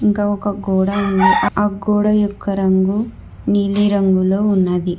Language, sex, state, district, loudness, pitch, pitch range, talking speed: Telugu, female, Telangana, Hyderabad, -16 LUFS, 200 Hz, 190-205 Hz, 130 wpm